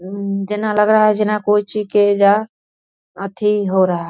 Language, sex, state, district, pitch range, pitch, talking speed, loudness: Hindi, female, Bihar, Saharsa, 200-210 Hz, 210 Hz, 190 wpm, -16 LUFS